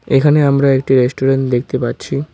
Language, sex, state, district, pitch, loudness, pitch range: Bengali, male, West Bengal, Cooch Behar, 135 Hz, -14 LUFS, 130-140 Hz